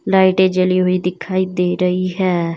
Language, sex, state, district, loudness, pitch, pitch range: Hindi, female, Himachal Pradesh, Shimla, -16 LUFS, 185 Hz, 180-185 Hz